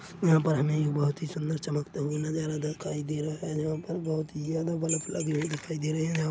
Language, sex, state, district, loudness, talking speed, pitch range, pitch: Hindi, male, Chhattisgarh, Rajnandgaon, -30 LUFS, 255 wpm, 150-160 Hz, 155 Hz